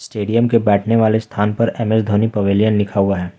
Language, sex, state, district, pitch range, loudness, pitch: Hindi, male, Jharkhand, Ranchi, 100-115 Hz, -16 LUFS, 105 Hz